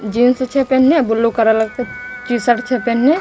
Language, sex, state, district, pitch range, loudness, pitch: Maithili, female, Bihar, Begusarai, 230-255 Hz, -15 LUFS, 250 Hz